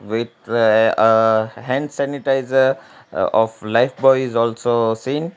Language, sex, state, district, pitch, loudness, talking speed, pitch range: English, male, Gujarat, Valsad, 115 Hz, -17 LUFS, 90 wpm, 110-135 Hz